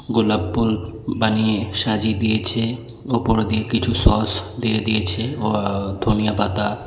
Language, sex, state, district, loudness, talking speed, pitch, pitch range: Bengali, male, Tripura, West Tripura, -20 LUFS, 120 wpm, 110 Hz, 105-115 Hz